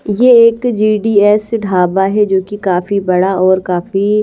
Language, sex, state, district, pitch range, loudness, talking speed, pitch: Hindi, female, Haryana, Rohtak, 190-215 Hz, -12 LUFS, 155 wpm, 205 Hz